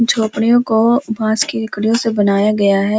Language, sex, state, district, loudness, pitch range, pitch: Hindi, female, Uttar Pradesh, Muzaffarnagar, -15 LUFS, 210-230 Hz, 220 Hz